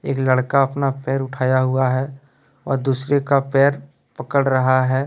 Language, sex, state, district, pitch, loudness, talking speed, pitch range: Hindi, male, Jharkhand, Deoghar, 135 Hz, -19 LUFS, 165 wpm, 130-140 Hz